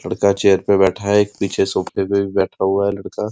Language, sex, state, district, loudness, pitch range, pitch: Hindi, male, Uttar Pradesh, Muzaffarnagar, -17 LUFS, 95-100 Hz, 100 Hz